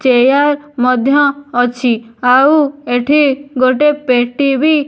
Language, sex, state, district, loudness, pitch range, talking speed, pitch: Odia, female, Odisha, Nuapada, -12 LUFS, 250-290 Hz, 110 wpm, 270 Hz